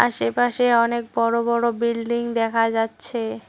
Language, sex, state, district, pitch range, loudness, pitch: Bengali, female, West Bengal, Cooch Behar, 225-235 Hz, -21 LUFS, 235 Hz